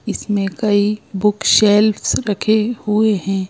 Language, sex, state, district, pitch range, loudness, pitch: Hindi, female, Madhya Pradesh, Bhopal, 205-215 Hz, -16 LUFS, 210 Hz